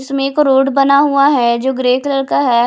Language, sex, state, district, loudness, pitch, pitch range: Hindi, female, Himachal Pradesh, Shimla, -13 LUFS, 270 Hz, 255-280 Hz